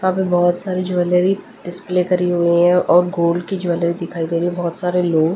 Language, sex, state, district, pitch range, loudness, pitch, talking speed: Hindi, female, Delhi, New Delhi, 170-180 Hz, -17 LUFS, 175 Hz, 210 wpm